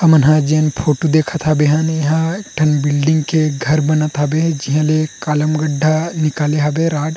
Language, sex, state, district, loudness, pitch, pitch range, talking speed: Chhattisgarhi, male, Chhattisgarh, Rajnandgaon, -15 LUFS, 155 Hz, 150-155 Hz, 185 wpm